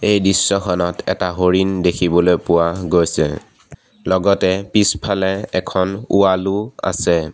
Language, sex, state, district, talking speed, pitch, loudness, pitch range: Assamese, male, Assam, Sonitpur, 105 wpm, 95 Hz, -17 LUFS, 90-100 Hz